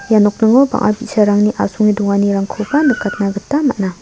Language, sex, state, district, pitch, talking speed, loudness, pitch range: Garo, female, Meghalaya, South Garo Hills, 210 Hz, 135 wpm, -14 LUFS, 200-235 Hz